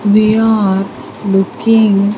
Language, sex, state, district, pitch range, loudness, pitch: English, female, Andhra Pradesh, Sri Satya Sai, 195-215 Hz, -12 LUFS, 210 Hz